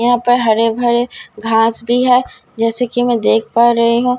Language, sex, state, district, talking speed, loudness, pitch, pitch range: Hindi, female, Bihar, Katihar, 200 wpm, -14 LUFS, 240 Hz, 230-245 Hz